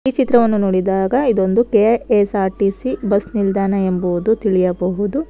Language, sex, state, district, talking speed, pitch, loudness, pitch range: Kannada, female, Karnataka, Bangalore, 115 wpm, 205 Hz, -16 LUFS, 190-230 Hz